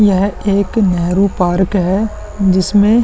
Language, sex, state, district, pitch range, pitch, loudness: Hindi, male, Uttar Pradesh, Muzaffarnagar, 185-205 Hz, 200 Hz, -14 LUFS